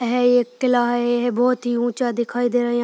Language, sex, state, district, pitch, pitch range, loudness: Hindi, female, Uttar Pradesh, Deoria, 245 Hz, 240-245 Hz, -20 LUFS